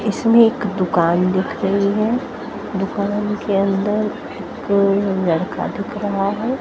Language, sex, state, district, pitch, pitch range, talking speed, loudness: Hindi, female, Haryana, Jhajjar, 200 Hz, 195-210 Hz, 125 wpm, -19 LUFS